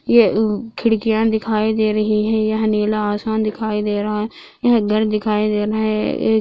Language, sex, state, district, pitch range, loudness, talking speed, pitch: Hindi, female, Andhra Pradesh, Anantapur, 210-220 Hz, -18 LUFS, 195 wpm, 215 Hz